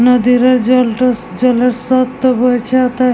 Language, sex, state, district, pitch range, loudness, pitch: Bengali, female, West Bengal, Jalpaiguri, 245-255 Hz, -12 LUFS, 250 Hz